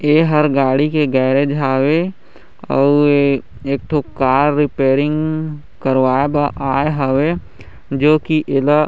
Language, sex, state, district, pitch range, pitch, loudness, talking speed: Chhattisgarhi, male, Chhattisgarh, Raigarh, 135-150 Hz, 145 Hz, -16 LUFS, 120 wpm